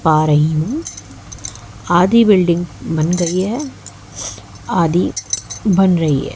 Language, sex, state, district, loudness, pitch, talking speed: Hindi, female, Haryana, Jhajjar, -16 LUFS, 155 Hz, 115 wpm